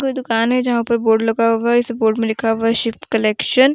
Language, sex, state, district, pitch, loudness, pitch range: Hindi, female, Jharkhand, Deoghar, 230 Hz, -17 LUFS, 225-240 Hz